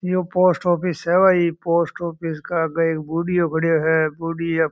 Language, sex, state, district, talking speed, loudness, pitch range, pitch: Marwari, male, Rajasthan, Churu, 155 wpm, -20 LUFS, 160-175 Hz, 165 Hz